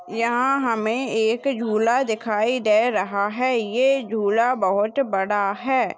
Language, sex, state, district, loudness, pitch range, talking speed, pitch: Hindi, female, Chhattisgarh, Bastar, -21 LUFS, 210-255 Hz, 130 wpm, 225 Hz